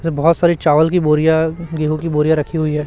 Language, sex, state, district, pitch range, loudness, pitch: Hindi, male, Chhattisgarh, Raipur, 150-165 Hz, -15 LUFS, 160 Hz